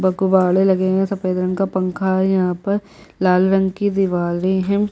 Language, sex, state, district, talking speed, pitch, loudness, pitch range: Hindi, female, Chhattisgarh, Jashpur, 185 wpm, 190 Hz, -18 LUFS, 185-195 Hz